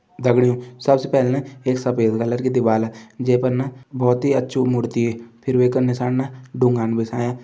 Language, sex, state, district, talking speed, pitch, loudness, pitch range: Hindi, male, Uttarakhand, Tehri Garhwal, 175 wpm, 125 Hz, -20 LUFS, 120-130 Hz